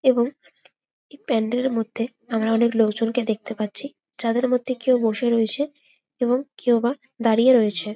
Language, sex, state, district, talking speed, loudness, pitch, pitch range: Bengali, female, West Bengal, Malda, 120 wpm, -22 LUFS, 240 Hz, 225-255 Hz